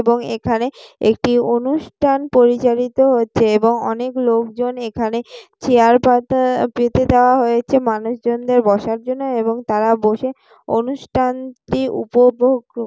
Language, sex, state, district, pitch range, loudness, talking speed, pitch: Bengali, female, West Bengal, Jalpaiguri, 230-255 Hz, -16 LUFS, 115 wpm, 245 Hz